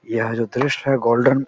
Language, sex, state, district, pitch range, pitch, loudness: Hindi, male, Bihar, Samastipur, 115-135 Hz, 130 Hz, -19 LUFS